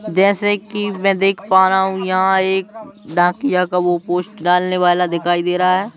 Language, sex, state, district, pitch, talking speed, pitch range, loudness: Hindi, male, Madhya Pradesh, Bhopal, 185 Hz, 190 wpm, 180-195 Hz, -16 LUFS